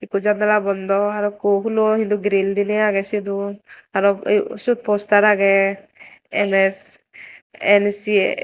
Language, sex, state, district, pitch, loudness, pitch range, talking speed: Chakma, female, Tripura, Dhalai, 205 Hz, -18 LUFS, 200-210 Hz, 120 wpm